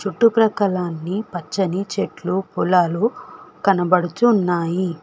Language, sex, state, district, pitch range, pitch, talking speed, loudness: Telugu, female, Telangana, Hyderabad, 180-215 Hz, 190 Hz, 70 wpm, -20 LUFS